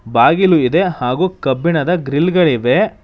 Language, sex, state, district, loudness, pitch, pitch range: Kannada, male, Karnataka, Bangalore, -14 LUFS, 165 Hz, 130-180 Hz